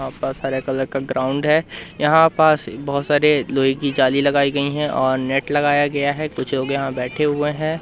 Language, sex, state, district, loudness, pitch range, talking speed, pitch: Hindi, male, Madhya Pradesh, Katni, -19 LUFS, 135-150 Hz, 215 wpm, 140 Hz